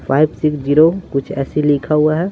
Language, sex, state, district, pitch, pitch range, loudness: Hindi, male, Bihar, Patna, 150 Hz, 140-155 Hz, -15 LUFS